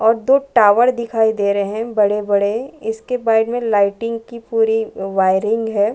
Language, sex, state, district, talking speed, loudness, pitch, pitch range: Hindi, female, Chhattisgarh, Bilaspur, 170 wpm, -17 LUFS, 225 Hz, 205-230 Hz